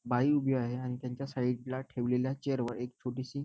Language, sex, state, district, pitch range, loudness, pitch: Marathi, male, Maharashtra, Nagpur, 125-135 Hz, -33 LUFS, 125 Hz